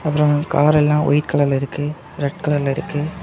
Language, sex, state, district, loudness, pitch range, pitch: Tamil, male, Tamil Nadu, Kanyakumari, -18 LUFS, 145-150 Hz, 150 Hz